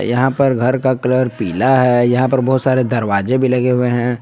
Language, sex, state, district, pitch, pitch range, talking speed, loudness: Hindi, male, Jharkhand, Palamu, 125 Hz, 120-130 Hz, 225 wpm, -15 LUFS